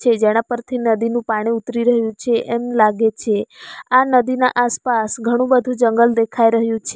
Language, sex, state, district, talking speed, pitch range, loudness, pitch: Gujarati, female, Gujarat, Valsad, 170 wpm, 225-245 Hz, -17 LUFS, 235 Hz